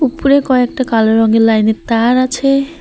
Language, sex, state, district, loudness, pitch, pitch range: Bengali, female, West Bengal, Alipurduar, -12 LUFS, 250 Hz, 225-275 Hz